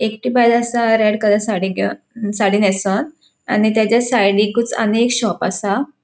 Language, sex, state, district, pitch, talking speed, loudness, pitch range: Konkani, female, Goa, North and South Goa, 220 Hz, 160 wpm, -16 LUFS, 205-235 Hz